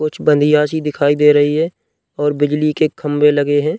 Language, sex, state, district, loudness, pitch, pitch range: Hindi, male, Uttar Pradesh, Jyotiba Phule Nagar, -15 LUFS, 150 Hz, 145-155 Hz